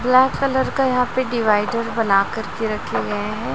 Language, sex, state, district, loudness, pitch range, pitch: Hindi, female, Chhattisgarh, Raipur, -20 LUFS, 220-260 Hz, 240 Hz